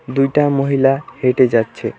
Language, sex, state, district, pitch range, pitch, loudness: Bengali, male, West Bengal, Alipurduar, 130-140 Hz, 135 Hz, -15 LUFS